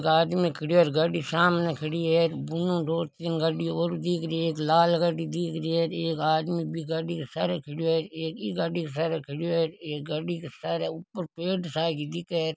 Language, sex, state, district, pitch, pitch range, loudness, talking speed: Marwari, male, Rajasthan, Nagaur, 165 Hz, 160-170 Hz, -27 LUFS, 225 wpm